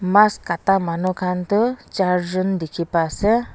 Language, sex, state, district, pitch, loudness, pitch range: Nagamese, female, Nagaland, Dimapur, 185 Hz, -20 LUFS, 170-200 Hz